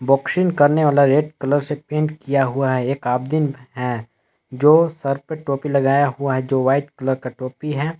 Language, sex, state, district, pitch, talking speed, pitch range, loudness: Hindi, male, Jharkhand, Palamu, 140 Hz, 195 wpm, 130-150 Hz, -19 LUFS